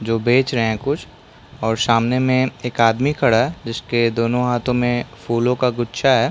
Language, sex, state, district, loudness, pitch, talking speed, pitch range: Hindi, male, Chhattisgarh, Bastar, -19 LUFS, 120 Hz, 190 wpm, 115-125 Hz